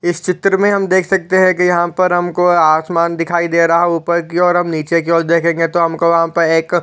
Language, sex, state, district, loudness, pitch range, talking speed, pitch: Hindi, male, Chhattisgarh, Raigarh, -13 LUFS, 170-180 Hz, 245 wpm, 170 Hz